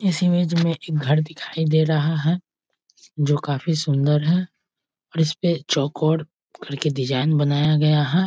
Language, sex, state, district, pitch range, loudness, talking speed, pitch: Hindi, male, Bihar, East Champaran, 145-170 Hz, -21 LUFS, 160 wpm, 155 Hz